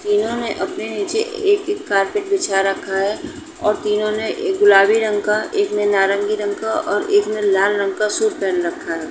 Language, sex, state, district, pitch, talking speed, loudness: Hindi, female, Uttar Pradesh, Etah, 215 Hz, 195 wpm, -18 LUFS